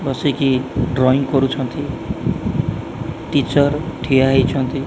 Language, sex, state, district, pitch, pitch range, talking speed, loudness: Odia, male, Odisha, Malkangiri, 135 Hz, 130-145 Hz, 75 wpm, -18 LUFS